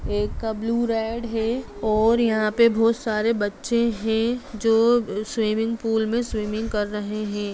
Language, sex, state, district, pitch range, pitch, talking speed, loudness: Hindi, female, Bihar, Jamui, 215-230 Hz, 225 Hz, 160 wpm, -23 LUFS